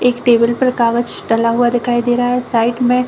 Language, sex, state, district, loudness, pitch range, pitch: Hindi, female, Chhattisgarh, Raigarh, -14 LUFS, 235-245 Hz, 240 Hz